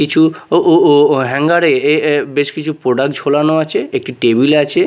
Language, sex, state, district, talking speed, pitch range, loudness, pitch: Bengali, male, Odisha, Nuapada, 150 wpm, 140-155 Hz, -13 LUFS, 150 Hz